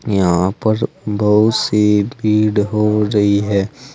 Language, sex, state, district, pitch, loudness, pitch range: Hindi, male, Uttar Pradesh, Saharanpur, 105 Hz, -15 LUFS, 100-105 Hz